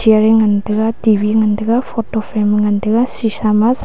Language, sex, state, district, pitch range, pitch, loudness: Wancho, female, Arunachal Pradesh, Longding, 210-225 Hz, 220 Hz, -14 LUFS